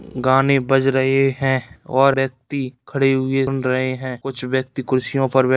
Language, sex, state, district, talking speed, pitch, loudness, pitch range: Hindi, male, Bihar, Darbhanga, 160 wpm, 130 Hz, -19 LUFS, 130-135 Hz